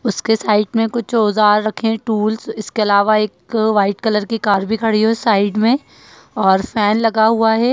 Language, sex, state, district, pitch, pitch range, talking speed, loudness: Hindi, female, Bihar, Darbhanga, 220 Hz, 210-225 Hz, 200 wpm, -16 LUFS